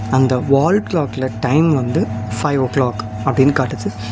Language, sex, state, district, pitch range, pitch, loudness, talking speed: Tamil, male, Tamil Nadu, Nilgiris, 110-140 Hz, 130 Hz, -17 LUFS, 145 wpm